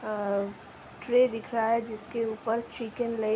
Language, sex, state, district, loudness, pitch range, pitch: Hindi, female, Uttar Pradesh, Hamirpur, -29 LUFS, 215-235 Hz, 225 Hz